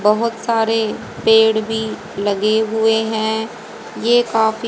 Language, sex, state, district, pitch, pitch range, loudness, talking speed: Hindi, female, Haryana, Rohtak, 220 Hz, 220-225 Hz, -17 LUFS, 115 wpm